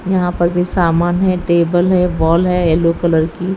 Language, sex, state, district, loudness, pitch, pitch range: Hindi, female, Haryana, Rohtak, -14 LUFS, 175 Hz, 170-180 Hz